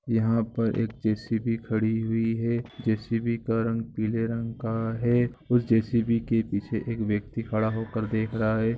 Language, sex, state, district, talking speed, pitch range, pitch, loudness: Hindi, male, Bihar, East Champaran, 155 wpm, 110-115 Hz, 115 Hz, -27 LUFS